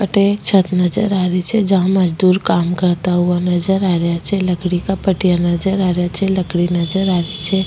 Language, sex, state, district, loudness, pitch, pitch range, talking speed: Rajasthani, female, Rajasthan, Nagaur, -16 LUFS, 180 Hz, 175-195 Hz, 205 wpm